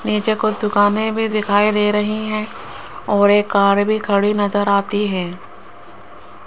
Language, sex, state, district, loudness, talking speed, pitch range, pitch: Hindi, female, Rajasthan, Jaipur, -17 LUFS, 150 wpm, 205-215 Hz, 210 Hz